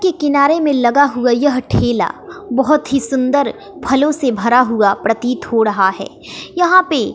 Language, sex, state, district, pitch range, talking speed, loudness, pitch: Hindi, female, Bihar, West Champaran, 240-290 Hz, 170 wpm, -14 LUFS, 270 Hz